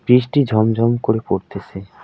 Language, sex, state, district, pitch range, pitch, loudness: Bengali, male, West Bengal, Alipurduar, 110-125 Hz, 115 Hz, -17 LUFS